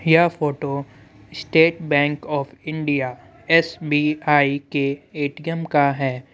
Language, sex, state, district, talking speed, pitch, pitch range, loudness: Hindi, male, Bihar, Muzaffarpur, 130 wpm, 145 Hz, 140-160 Hz, -20 LUFS